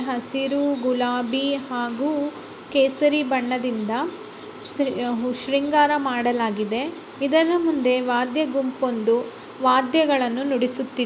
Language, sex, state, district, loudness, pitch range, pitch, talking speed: Kannada, female, Karnataka, Bellary, -22 LUFS, 245-285 Hz, 265 Hz, 80 wpm